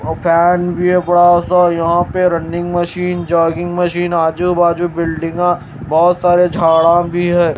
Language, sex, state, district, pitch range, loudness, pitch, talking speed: Hindi, male, Maharashtra, Mumbai Suburban, 170-175 Hz, -13 LUFS, 175 Hz, 140 wpm